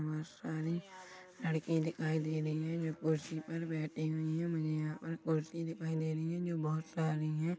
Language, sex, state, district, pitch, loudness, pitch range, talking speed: Hindi, male, Chhattisgarh, Rajnandgaon, 160 Hz, -37 LUFS, 155-165 Hz, 190 wpm